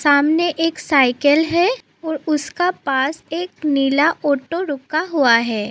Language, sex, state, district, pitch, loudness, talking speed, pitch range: Hindi, female, Assam, Sonitpur, 305 Hz, -18 LUFS, 135 wpm, 280-330 Hz